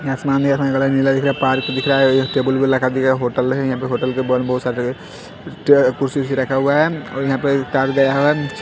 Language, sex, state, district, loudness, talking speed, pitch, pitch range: Hindi, male, Haryana, Rohtak, -17 LUFS, 265 wpm, 135 Hz, 130-135 Hz